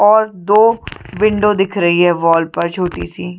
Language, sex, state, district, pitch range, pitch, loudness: Hindi, female, Chhattisgarh, Sarguja, 165-210 Hz, 180 Hz, -14 LUFS